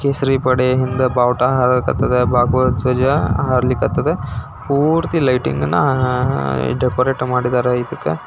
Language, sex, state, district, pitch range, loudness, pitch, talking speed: Kannada, male, Karnataka, Belgaum, 125-135 Hz, -16 LUFS, 125 Hz, 110 wpm